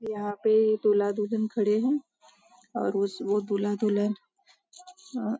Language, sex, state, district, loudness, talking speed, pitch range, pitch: Hindi, female, Maharashtra, Nagpur, -27 LUFS, 145 wpm, 205-255 Hz, 215 Hz